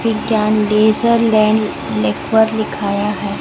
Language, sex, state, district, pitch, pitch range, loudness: Hindi, female, Chhattisgarh, Raipur, 215 Hz, 210-220 Hz, -15 LUFS